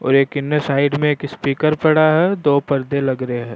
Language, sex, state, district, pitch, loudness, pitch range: Rajasthani, male, Rajasthan, Churu, 140 Hz, -17 LUFS, 135-150 Hz